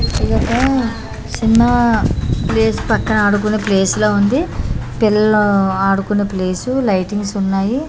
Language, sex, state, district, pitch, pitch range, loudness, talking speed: Telugu, female, Andhra Pradesh, Manyam, 205 Hz, 195-230 Hz, -15 LUFS, 90 wpm